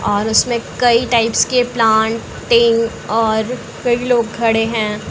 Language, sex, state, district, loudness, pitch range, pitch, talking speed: Hindi, female, Uttar Pradesh, Varanasi, -15 LUFS, 220-240 Hz, 230 Hz, 140 wpm